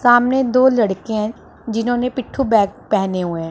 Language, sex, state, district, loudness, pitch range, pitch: Hindi, female, Punjab, Pathankot, -18 LUFS, 205-250 Hz, 225 Hz